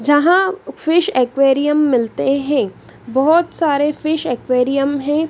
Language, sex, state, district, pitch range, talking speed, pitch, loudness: Hindi, female, Madhya Pradesh, Dhar, 270-315 Hz, 115 wpm, 285 Hz, -16 LUFS